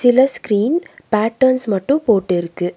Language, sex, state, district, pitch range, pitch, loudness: Tamil, female, Tamil Nadu, Nilgiris, 200-265 Hz, 230 Hz, -17 LUFS